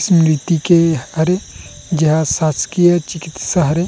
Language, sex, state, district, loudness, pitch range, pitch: Chhattisgarhi, male, Chhattisgarh, Rajnandgaon, -15 LUFS, 155-175 Hz, 165 Hz